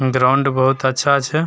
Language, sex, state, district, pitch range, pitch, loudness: Maithili, male, Bihar, Begusarai, 130-140 Hz, 135 Hz, -16 LUFS